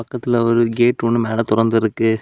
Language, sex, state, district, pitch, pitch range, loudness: Tamil, male, Tamil Nadu, Kanyakumari, 115 Hz, 115-120 Hz, -17 LUFS